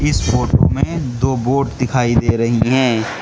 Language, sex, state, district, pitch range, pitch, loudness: Hindi, male, Mizoram, Aizawl, 115-130 Hz, 125 Hz, -16 LUFS